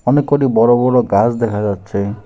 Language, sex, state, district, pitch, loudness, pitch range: Bengali, male, West Bengal, Alipurduar, 115 Hz, -14 LUFS, 105-125 Hz